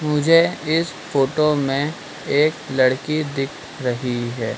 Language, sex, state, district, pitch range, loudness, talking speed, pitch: Hindi, male, Madhya Pradesh, Dhar, 130-155 Hz, -20 LUFS, 120 wpm, 145 Hz